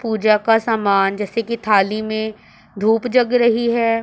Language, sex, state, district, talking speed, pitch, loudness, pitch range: Hindi, female, Punjab, Pathankot, 165 wpm, 225 Hz, -17 LUFS, 215-235 Hz